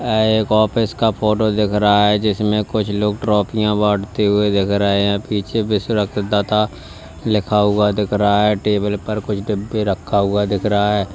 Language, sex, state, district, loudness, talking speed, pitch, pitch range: Hindi, male, Uttar Pradesh, Lalitpur, -17 LUFS, 185 wpm, 105 Hz, 100-105 Hz